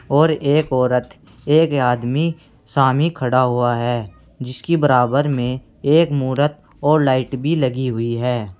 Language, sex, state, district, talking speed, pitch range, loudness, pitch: Hindi, male, Uttar Pradesh, Saharanpur, 140 wpm, 125-145 Hz, -18 LUFS, 130 Hz